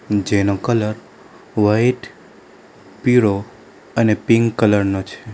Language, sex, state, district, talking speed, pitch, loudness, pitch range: Gujarati, male, Gujarat, Valsad, 100 wpm, 105 Hz, -17 LUFS, 100-115 Hz